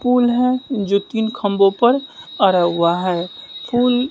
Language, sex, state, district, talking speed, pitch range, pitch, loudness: Hindi, male, Bihar, West Champaran, 145 wpm, 195-250 Hz, 225 Hz, -17 LUFS